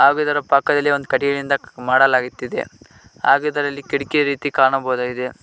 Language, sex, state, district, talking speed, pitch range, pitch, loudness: Kannada, male, Karnataka, Koppal, 120 wpm, 130-145 Hz, 140 Hz, -18 LUFS